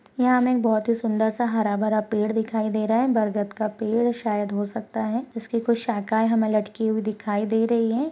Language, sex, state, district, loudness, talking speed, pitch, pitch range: Hindi, female, Goa, North and South Goa, -24 LUFS, 230 wpm, 220 Hz, 215-235 Hz